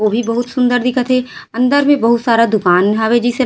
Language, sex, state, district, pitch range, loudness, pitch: Chhattisgarhi, female, Chhattisgarh, Raigarh, 230-250 Hz, -14 LUFS, 240 Hz